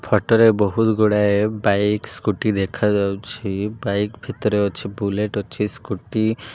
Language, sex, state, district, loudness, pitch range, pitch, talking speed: Odia, male, Odisha, Malkangiri, -20 LUFS, 100-110 Hz, 105 Hz, 130 wpm